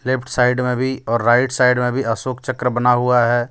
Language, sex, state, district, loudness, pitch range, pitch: Hindi, male, Jharkhand, Deoghar, -17 LUFS, 120-130 Hz, 125 Hz